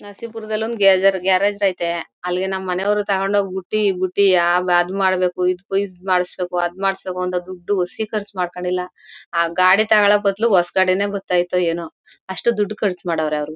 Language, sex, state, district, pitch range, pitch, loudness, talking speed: Kannada, female, Karnataka, Mysore, 180-200 Hz, 185 Hz, -19 LUFS, 170 wpm